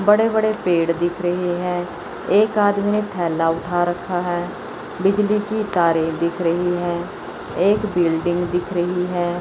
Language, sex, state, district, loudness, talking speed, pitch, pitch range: Hindi, female, Chandigarh, Chandigarh, -20 LUFS, 155 wpm, 175 Hz, 175-205 Hz